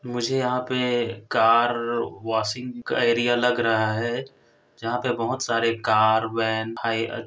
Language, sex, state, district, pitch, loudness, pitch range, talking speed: Hindi, male, Chhattisgarh, Korba, 120 Hz, -23 LUFS, 115-120 Hz, 150 wpm